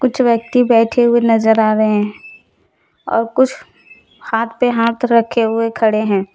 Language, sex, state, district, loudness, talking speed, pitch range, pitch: Hindi, female, Jharkhand, Deoghar, -15 LUFS, 160 wpm, 220-235 Hz, 230 Hz